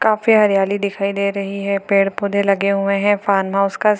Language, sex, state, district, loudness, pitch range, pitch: Hindi, female, Bihar, Gopalganj, -17 LUFS, 195-200 Hz, 200 Hz